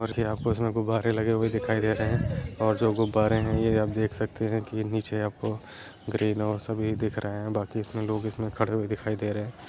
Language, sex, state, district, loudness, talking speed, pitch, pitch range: Hindi, male, Uttar Pradesh, Etah, -28 LUFS, 240 wpm, 110 Hz, 105-110 Hz